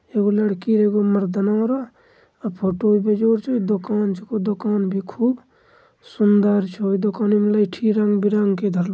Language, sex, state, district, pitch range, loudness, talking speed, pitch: Angika, male, Bihar, Bhagalpur, 200-225 Hz, -20 LUFS, 140 wpm, 210 Hz